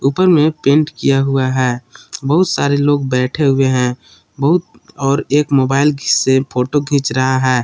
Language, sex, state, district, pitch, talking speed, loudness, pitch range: Hindi, male, Jharkhand, Palamu, 135 Hz, 165 wpm, -15 LUFS, 130-145 Hz